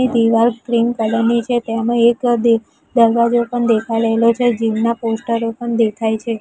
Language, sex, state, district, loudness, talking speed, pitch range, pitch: Gujarati, female, Gujarat, Gandhinagar, -16 LUFS, 180 wpm, 225-235 Hz, 230 Hz